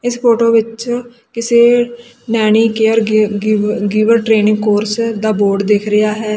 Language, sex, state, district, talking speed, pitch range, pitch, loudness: Punjabi, female, Punjab, Kapurthala, 150 wpm, 215-235 Hz, 220 Hz, -13 LUFS